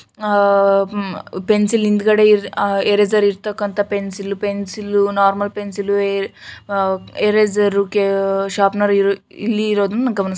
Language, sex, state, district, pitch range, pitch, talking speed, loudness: Kannada, female, Karnataka, Shimoga, 200-210 Hz, 200 Hz, 80 wpm, -17 LUFS